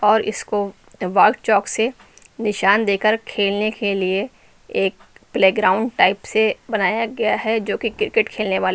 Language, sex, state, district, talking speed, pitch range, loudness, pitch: Hindi, female, Uttar Pradesh, Lucknow, 150 wpm, 200-225 Hz, -19 LUFS, 215 Hz